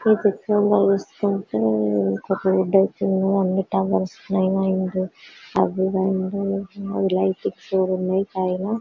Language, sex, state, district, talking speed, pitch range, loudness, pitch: Telugu, female, Telangana, Karimnagar, 95 wpm, 185-195 Hz, -22 LUFS, 190 Hz